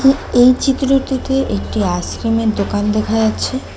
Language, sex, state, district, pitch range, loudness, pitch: Bengali, female, West Bengal, Cooch Behar, 220-270 Hz, -16 LUFS, 250 Hz